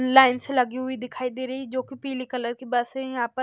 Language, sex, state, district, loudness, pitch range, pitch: Hindi, female, Chhattisgarh, Raipur, -25 LUFS, 250-260 Hz, 255 Hz